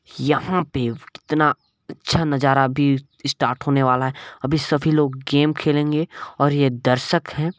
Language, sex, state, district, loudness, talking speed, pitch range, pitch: Hindi, male, Chhattisgarh, Balrampur, -20 LUFS, 150 wpm, 135-155 Hz, 145 Hz